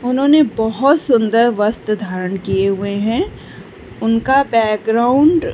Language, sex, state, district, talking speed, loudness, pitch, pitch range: Hindi, female, Bihar, Vaishali, 120 wpm, -15 LUFS, 230 Hz, 210-265 Hz